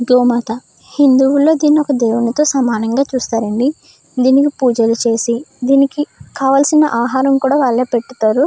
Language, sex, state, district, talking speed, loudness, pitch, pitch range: Telugu, female, Andhra Pradesh, Krishna, 120 wpm, -14 LUFS, 260 Hz, 235-280 Hz